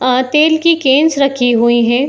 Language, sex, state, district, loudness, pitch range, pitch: Hindi, female, Bihar, Saharsa, -11 LUFS, 245-305 Hz, 270 Hz